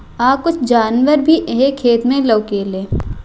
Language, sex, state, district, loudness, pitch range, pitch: Bhojpuri, female, Bihar, Gopalganj, -14 LUFS, 210-270 Hz, 240 Hz